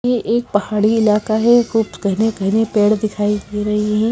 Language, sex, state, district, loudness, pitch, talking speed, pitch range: Hindi, female, Himachal Pradesh, Shimla, -16 LUFS, 215 Hz, 175 wpm, 210-225 Hz